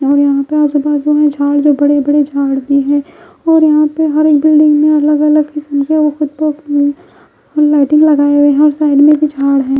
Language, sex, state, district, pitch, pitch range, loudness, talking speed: Hindi, female, Bihar, West Champaran, 295 Hz, 285-300 Hz, -11 LUFS, 215 wpm